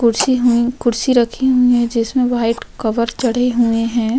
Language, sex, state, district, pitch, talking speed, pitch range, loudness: Hindi, female, Uttar Pradesh, Hamirpur, 240 Hz, 170 wpm, 230-250 Hz, -16 LUFS